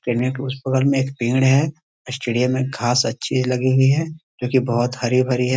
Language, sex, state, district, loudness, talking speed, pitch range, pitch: Hindi, male, Bihar, East Champaran, -19 LUFS, 205 wpm, 125-135 Hz, 130 Hz